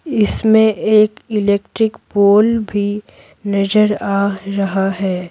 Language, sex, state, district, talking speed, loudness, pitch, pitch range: Hindi, female, Bihar, Patna, 100 wpm, -15 LUFS, 205 Hz, 200-215 Hz